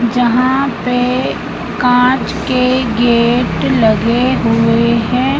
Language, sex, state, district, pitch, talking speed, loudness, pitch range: Hindi, female, Madhya Pradesh, Katni, 245 Hz, 90 wpm, -13 LUFS, 235-255 Hz